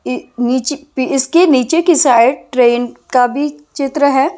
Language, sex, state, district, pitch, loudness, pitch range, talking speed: Hindi, female, Maharashtra, Mumbai Suburban, 270 Hz, -13 LUFS, 245-295 Hz, 165 wpm